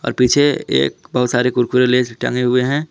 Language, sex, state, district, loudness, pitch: Hindi, male, Jharkhand, Palamu, -16 LUFS, 125 Hz